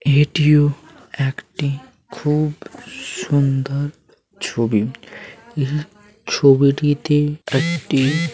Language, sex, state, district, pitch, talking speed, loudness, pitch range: Bengali, male, West Bengal, Paschim Medinipur, 145 Hz, 60 wpm, -19 LUFS, 135-150 Hz